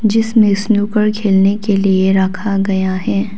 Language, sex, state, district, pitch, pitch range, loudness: Hindi, female, Arunachal Pradesh, Papum Pare, 200 Hz, 195-210 Hz, -14 LUFS